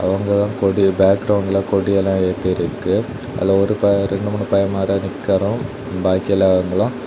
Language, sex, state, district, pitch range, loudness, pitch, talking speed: Tamil, male, Tamil Nadu, Kanyakumari, 95-100 Hz, -18 LUFS, 100 Hz, 135 wpm